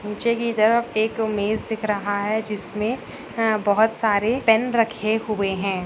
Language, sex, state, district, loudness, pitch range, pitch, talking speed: Hindi, female, Maharashtra, Solapur, -22 LUFS, 210-225 Hz, 220 Hz, 155 wpm